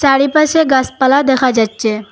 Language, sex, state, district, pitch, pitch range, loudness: Bengali, female, Assam, Hailakandi, 265 Hz, 225-280 Hz, -12 LUFS